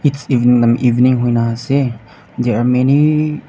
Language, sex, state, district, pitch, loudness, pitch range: Nagamese, male, Nagaland, Dimapur, 125 Hz, -14 LUFS, 120-140 Hz